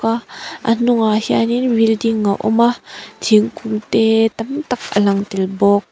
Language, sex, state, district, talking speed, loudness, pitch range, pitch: Mizo, female, Mizoram, Aizawl, 160 wpm, -16 LUFS, 210-235 Hz, 225 Hz